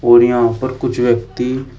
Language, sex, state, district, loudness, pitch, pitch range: Hindi, male, Uttar Pradesh, Shamli, -15 LUFS, 120 Hz, 120-130 Hz